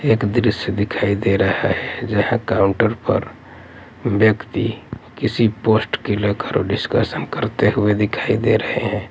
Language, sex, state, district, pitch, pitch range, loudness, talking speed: Hindi, male, Delhi, New Delhi, 105 Hz, 100-115 Hz, -19 LUFS, 140 wpm